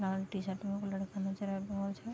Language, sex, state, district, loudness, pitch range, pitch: Maithili, female, Bihar, Vaishali, -38 LUFS, 195-200 Hz, 195 Hz